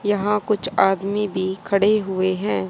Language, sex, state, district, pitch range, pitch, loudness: Hindi, female, Haryana, Jhajjar, 190-210 Hz, 200 Hz, -21 LUFS